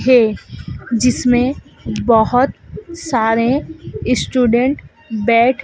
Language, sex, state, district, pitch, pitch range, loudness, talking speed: Hindi, female, Madhya Pradesh, Dhar, 245 Hz, 230-260 Hz, -16 LUFS, 65 wpm